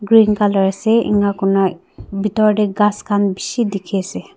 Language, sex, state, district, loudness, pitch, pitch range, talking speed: Nagamese, female, Nagaland, Dimapur, -16 LUFS, 205 Hz, 195-210 Hz, 150 wpm